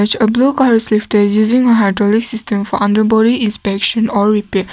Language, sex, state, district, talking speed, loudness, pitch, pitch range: English, female, Nagaland, Kohima, 165 wpm, -13 LUFS, 215 Hz, 205-225 Hz